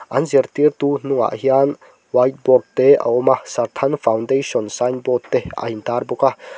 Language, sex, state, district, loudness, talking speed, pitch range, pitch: Mizo, male, Mizoram, Aizawl, -18 LUFS, 155 wpm, 125-140 Hz, 135 Hz